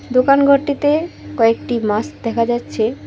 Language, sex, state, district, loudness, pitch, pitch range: Bengali, female, West Bengal, Alipurduar, -16 LUFS, 245 Hz, 230-280 Hz